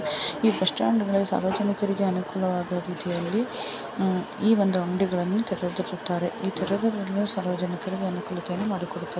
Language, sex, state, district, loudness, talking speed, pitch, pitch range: Kannada, female, Karnataka, Bellary, -26 LUFS, 110 wpm, 190 Hz, 180-200 Hz